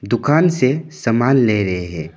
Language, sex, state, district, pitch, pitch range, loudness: Hindi, male, Arunachal Pradesh, Papum Pare, 120 Hz, 95-145 Hz, -16 LUFS